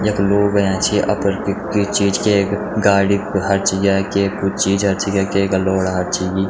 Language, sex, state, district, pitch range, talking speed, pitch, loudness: Garhwali, male, Uttarakhand, Tehri Garhwal, 95-100 Hz, 185 wpm, 100 Hz, -17 LUFS